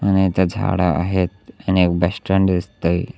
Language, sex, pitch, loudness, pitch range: Marathi, male, 95 Hz, -19 LUFS, 90-95 Hz